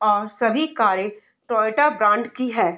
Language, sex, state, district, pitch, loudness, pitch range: Hindi, female, Bihar, Darbhanga, 220 Hz, -20 LUFS, 210-255 Hz